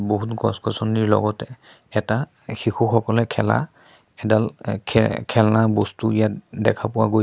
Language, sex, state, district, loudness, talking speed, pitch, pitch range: Assamese, male, Assam, Sonitpur, -21 LUFS, 125 wpm, 110 Hz, 105-115 Hz